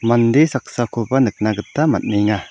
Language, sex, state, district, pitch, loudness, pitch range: Garo, male, Meghalaya, South Garo Hills, 115 Hz, -17 LUFS, 105-125 Hz